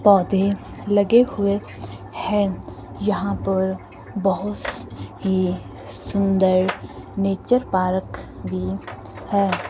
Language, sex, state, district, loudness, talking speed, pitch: Hindi, female, Himachal Pradesh, Shimla, -22 LUFS, 80 wpm, 180 Hz